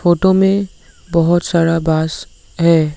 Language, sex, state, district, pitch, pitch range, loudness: Hindi, male, Assam, Sonitpur, 170 Hz, 160-175 Hz, -15 LUFS